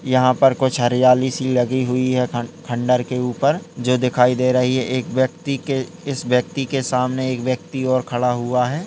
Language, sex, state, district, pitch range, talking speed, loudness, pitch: Hindi, male, Uttar Pradesh, Jalaun, 125-130 Hz, 205 wpm, -19 LUFS, 130 Hz